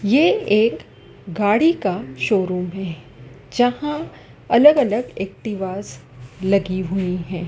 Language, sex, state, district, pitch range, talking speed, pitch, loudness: Hindi, female, Madhya Pradesh, Dhar, 175-220 Hz, 105 wpm, 190 Hz, -19 LUFS